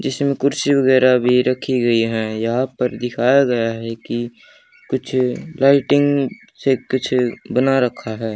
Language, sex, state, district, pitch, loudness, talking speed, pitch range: Hindi, male, Haryana, Charkhi Dadri, 130 Hz, -18 LUFS, 145 wpm, 120-140 Hz